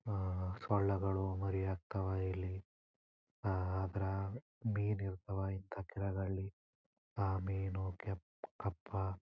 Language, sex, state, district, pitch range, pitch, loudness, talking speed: Kannada, male, Karnataka, Chamarajanagar, 95-100 Hz, 95 Hz, -40 LUFS, 90 wpm